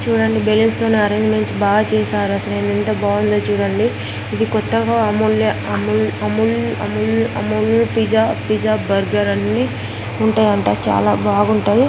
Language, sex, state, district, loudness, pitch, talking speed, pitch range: Telugu, female, Telangana, Karimnagar, -17 LUFS, 110 Hz, 110 wpm, 105-115 Hz